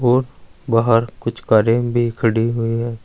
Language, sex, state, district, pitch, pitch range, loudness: Hindi, male, Uttar Pradesh, Saharanpur, 115 Hz, 115-120 Hz, -18 LUFS